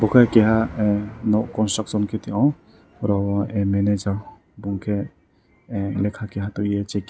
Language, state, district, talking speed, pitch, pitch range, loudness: Kokborok, Tripura, West Tripura, 125 wpm, 105 Hz, 100-110 Hz, -22 LUFS